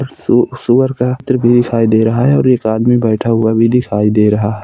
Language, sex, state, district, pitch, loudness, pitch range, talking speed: Hindi, male, Uttar Pradesh, Hamirpur, 120 Hz, -12 LUFS, 110-125 Hz, 220 wpm